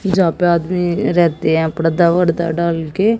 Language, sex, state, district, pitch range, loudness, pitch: Hindi, female, Haryana, Jhajjar, 165-180 Hz, -16 LUFS, 170 Hz